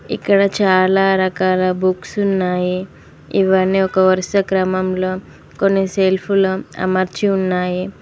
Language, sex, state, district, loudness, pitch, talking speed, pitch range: Telugu, female, Telangana, Mahabubabad, -16 LUFS, 190 Hz, 95 wpm, 185-195 Hz